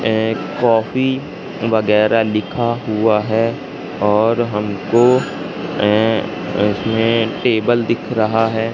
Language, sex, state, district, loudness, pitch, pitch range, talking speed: Hindi, male, Madhya Pradesh, Katni, -17 LUFS, 110 Hz, 105-115 Hz, 95 wpm